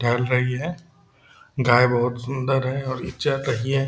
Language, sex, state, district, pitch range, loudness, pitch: Hindi, male, Bihar, Purnia, 125-135 Hz, -22 LUFS, 130 Hz